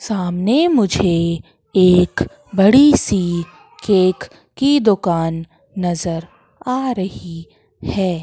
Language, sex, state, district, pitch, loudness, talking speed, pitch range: Hindi, female, Madhya Pradesh, Katni, 185 Hz, -16 LUFS, 85 wpm, 170-215 Hz